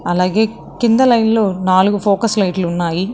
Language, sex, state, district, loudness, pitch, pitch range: Telugu, female, Telangana, Hyderabad, -15 LUFS, 200 Hz, 185-220 Hz